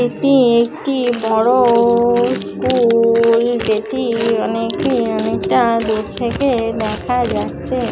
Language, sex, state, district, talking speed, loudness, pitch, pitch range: Bengali, female, West Bengal, Jhargram, 75 wpm, -15 LUFS, 235 Hz, 230-245 Hz